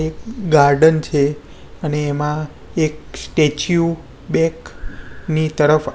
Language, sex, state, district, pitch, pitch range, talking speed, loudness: Gujarati, male, Gujarat, Gandhinagar, 155 Hz, 150-160 Hz, 100 wpm, -18 LUFS